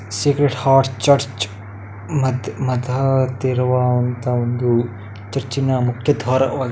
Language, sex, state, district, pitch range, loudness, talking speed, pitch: Kannada, male, Karnataka, Dakshina Kannada, 120-135 Hz, -19 LUFS, 90 wpm, 125 Hz